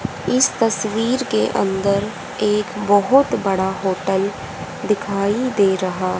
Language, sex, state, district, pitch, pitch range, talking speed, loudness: Hindi, female, Haryana, Rohtak, 200 Hz, 195-220 Hz, 105 wpm, -19 LUFS